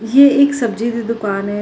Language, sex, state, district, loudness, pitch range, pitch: Punjabi, female, Karnataka, Bangalore, -15 LUFS, 210-275 Hz, 230 Hz